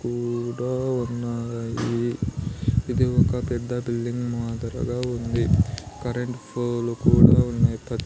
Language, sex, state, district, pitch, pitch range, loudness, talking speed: Telugu, male, Andhra Pradesh, Sri Satya Sai, 120 Hz, 115-125 Hz, -24 LUFS, 90 wpm